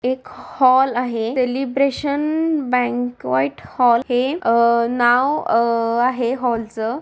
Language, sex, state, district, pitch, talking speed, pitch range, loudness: Marathi, female, Maharashtra, Sindhudurg, 245 Hz, 110 wpm, 235-265 Hz, -18 LUFS